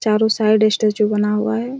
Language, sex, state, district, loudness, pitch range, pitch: Hindi, female, Chhattisgarh, Raigarh, -17 LUFS, 210-220 Hz, 215 Hz